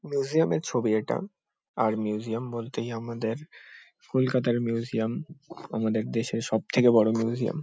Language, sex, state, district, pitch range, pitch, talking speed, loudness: Bengali, male, West Bengal, Kolkata, 110-130 Hz, 115 Hz, 150 wpm, -27 LUFS